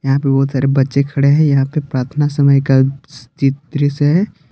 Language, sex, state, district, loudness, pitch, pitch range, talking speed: Hindi, male, Jharkhand, Palamu, -14 LUFS, 140 Hz, 135-145 Hz, 185 wpm